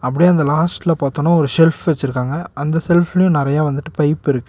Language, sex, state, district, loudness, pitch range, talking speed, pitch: Tamil, male, Tamil Nadu, Nilgiris, -16 LUFS, 145-170 Hz, 175 wpm, 155 Hz